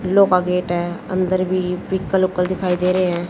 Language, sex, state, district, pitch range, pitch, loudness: Hindi, female, Haryana, Jhajjar, 180-185 Hz, 185 Hz, -19 LUFS